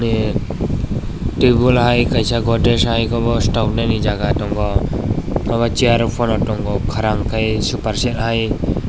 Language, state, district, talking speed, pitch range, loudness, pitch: Kokborok, Tripura, West Tripura, 135 wpm, 105-115 Hz, -17 LUFS, 115 Hz